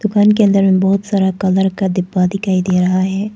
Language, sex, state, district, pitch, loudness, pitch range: Hindi, female, Arunachal Pradesh, Papum Pare, 190 Hz, -14 LUFS, 185-200 Hz